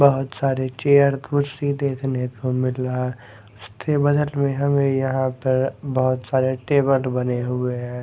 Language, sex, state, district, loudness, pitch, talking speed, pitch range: Hindi, male, Bihar, Patna, -21 LUFS, 130 Hz, 155 wpm, 125-140 Hz